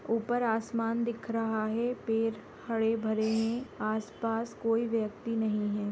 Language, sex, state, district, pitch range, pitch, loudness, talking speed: Hindi, female, Rajasthan, Nagaur, 220-230 Hz, 225 Hz, -31 LUFS, 150 wpm